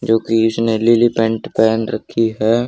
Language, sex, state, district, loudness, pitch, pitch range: Hindi, male, Haryana, Charkhi Dadri, -16 LUFS, 115 Hz, 110-115 Hz